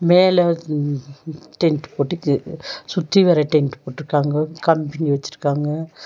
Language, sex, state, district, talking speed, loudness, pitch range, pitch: Tamil, female, Tamil Nadu, Nilgiris, 110 wpm, -19 LUFS, 145-165 Hz, 150 Hz